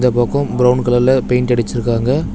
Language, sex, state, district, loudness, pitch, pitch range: Tamil, male, Tamil Nadu, Chennai, -15 LUFS, 125 Hz, 120-130 Hz